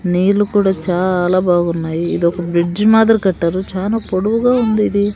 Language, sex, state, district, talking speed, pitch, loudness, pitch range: Telugu, female, Andhra Pradesh, Sri Satya Sai, 140 wpm, 190 Hz, -15 LUFS, 175-210 Hz